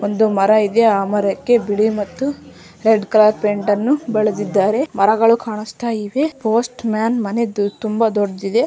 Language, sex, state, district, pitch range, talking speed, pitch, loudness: Kannada, female, Karnataka, Dharwad, 205-230 Hz, 125 wpm, 215 Hz, -17 LUFS